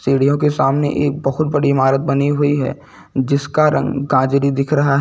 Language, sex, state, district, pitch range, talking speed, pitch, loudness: Hindi, male, Uttar Pradesh, Lucknow, 135-145 Hz, 190 wpm, 140 Hz, -16 LUFS